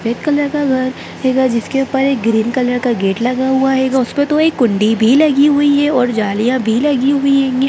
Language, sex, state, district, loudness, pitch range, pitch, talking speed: Hindi, female, Bihar, Darbhanga, -14 LUFS, 240-280 Hz, 260 Hz, 225 wpm